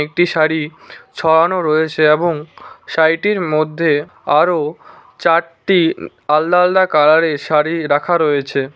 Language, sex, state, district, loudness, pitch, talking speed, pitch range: Bengali, male, West Bengal, Cooch Behar, -15 LUFS, 160 Hz, 110 wpm, 150-170 Hz